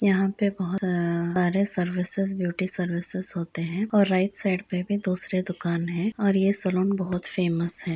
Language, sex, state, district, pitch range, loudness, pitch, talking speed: Hindi, female, Uttar Pradesh, Gorakhpur, 175-195 Hz, -23 LUFS, 185 Hz, 180 wpm